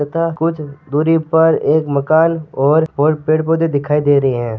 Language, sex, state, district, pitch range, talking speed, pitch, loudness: Marwari, male, Rajasthan, Nagaur, 145-160 Hz, 185 wpm, 155 Hz, -15 LUFS